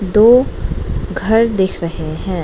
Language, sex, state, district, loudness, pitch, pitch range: Hindi, female, Arunachal Pradesh, Lower Dibang Valley, -15 LUFS, 195 Hz, 170-225 Hz